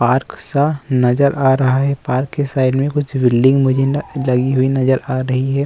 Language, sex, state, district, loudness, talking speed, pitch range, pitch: Hindi, male, Uttar Pradesh, Muzaffarnagar, -16 LUFS, 190 wpm, 130-140 Hz, 135 Hz